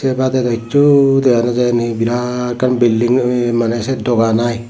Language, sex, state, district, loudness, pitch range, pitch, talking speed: Chakma, male, Tripura, Dhalai, -14 LUFS, 120-130 Hz, 120 Hz, 180 wpm